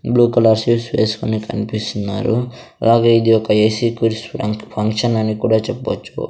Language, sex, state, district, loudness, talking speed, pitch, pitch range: Telugu, male, Andhra Pradesh, Sri Satya Sai, -17 LUFS, 135 wpm, 110 Hz, 110-115 Hz